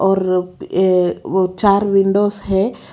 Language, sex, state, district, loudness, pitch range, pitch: Hindi, female, Haryana, Rohtak, -16 LUFS, 185-200 Hz, 195 Hz